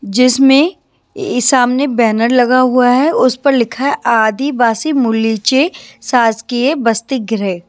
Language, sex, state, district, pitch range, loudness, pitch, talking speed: Hindi, female, Maharashtra, Washim, 225-270 Hz, -12 LUFS, 250 Hz, 135 wpm